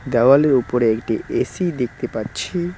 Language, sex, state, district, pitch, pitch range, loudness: Bengali, male, West Bengal, Cooch Behar, 125 Hz, 115-140 Hz, -19 LUFS